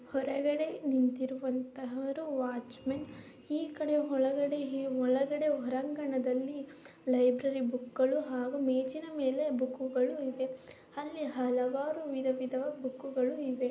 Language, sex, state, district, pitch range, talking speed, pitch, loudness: Kannada, female, Karnataka, Chamarajanagar, 255-285 Hz, 110 wpm, 265 Hz, -33 LUFS